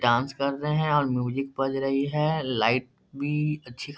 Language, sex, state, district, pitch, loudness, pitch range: Hindi, male, Bihar, Darbhanga, 135 Hz, -26 LUFS, 125-150 Hz